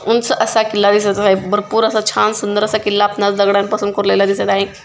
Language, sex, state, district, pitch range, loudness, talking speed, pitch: Marathi, female, Maharashtra, Pune, 200-215 Hz, -15 LUFS, 200 wpm, 205 Hz